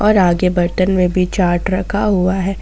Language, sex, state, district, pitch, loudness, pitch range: Hindi, female, Jharkhand, Ranchi, 185 Hz, -15 LUFS, 180-195 Hz